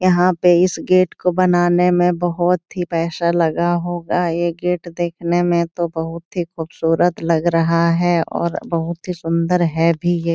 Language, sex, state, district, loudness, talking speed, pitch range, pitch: Hindi, female, Bihar, Supaul, -18 LUFS, 175 wpm, 170-175 Hz, 175 Hz